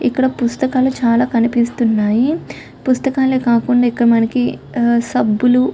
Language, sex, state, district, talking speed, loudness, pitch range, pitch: Telugu, female, Telangana, Karimnagar, 105 wpm, -15 LUFS, 235-260 Hz, 245 Hz